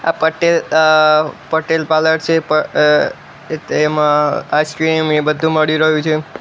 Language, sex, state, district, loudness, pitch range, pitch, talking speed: Gujarati, male, Gujarat, Gandhinagar, -14 LUFS, 155-160 Hz, 155 Hz, 140 wpm